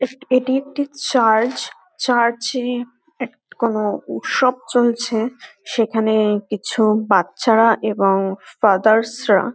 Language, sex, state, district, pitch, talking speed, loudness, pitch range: Bengali, female, West Bengal, North 24 Parganas, 230 Hz, 105 wpm, -18 LUFS, 220-250 Hz